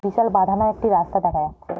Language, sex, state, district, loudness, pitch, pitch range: Bengali, female, West Bengal, Jhargram, -20 LUFS, 195 Hz, 175-215 Hz